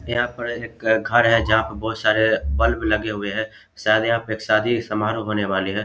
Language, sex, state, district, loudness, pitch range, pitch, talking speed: Hindi, male, Bihar, Samastipur, -21 LUFS, 105-115 Hz, 110 Hz, 215 wpm